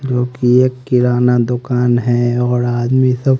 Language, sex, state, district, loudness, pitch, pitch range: Hindi, male, Haryana, Rohtak, -14 LUFS, 125 Hz, 120-125 Hz